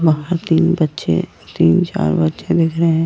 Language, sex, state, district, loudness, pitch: Hindi, female, Goa, North and South Goa, -16 LUFS, 160 Hz